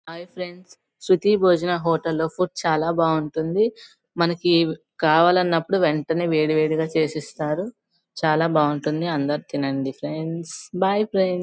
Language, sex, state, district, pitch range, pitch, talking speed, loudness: Telugu, male, Andhra Pradesh, Guntur, 155-180 Hz, 165 Hz, 130 wpm, -22 LUFS